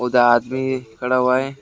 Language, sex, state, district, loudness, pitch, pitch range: Hindi, male, West Bengal, Alipurduar, -19 LUFS, 125 Hz, 125-130 Hz